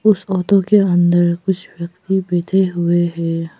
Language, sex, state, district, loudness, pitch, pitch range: Hindi, female, Arunachal Pradesh, Papum Pare, -16 LUFS, 180 Hz, 175-190 Hz